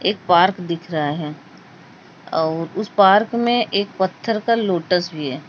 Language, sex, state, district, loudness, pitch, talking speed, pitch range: Hindi, female, Uttar Pradesh, Lalitpur, -19 LUFS, 185 Hz, 165 wpm, 160-210 Hz